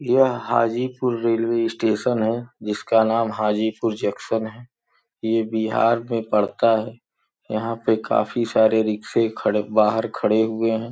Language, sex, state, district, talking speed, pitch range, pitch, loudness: Hindi, male, Uttar Pradesh, Gorakhpur, 135 wpm, 110-115 Hz, 115 Hz, -21 LUFS